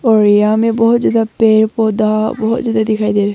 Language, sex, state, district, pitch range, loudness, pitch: Hindi, female, Arunachal Pradesh, Longding, 215-225 Hz, -13 LUFS, 220 Hz